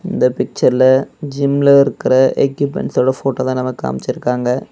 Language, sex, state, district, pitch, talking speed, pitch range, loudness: Tamil, male, Tamil Nadu, Namakkal, 130 Hz, 125 wpm, 125-140 Hz, -15 LUFS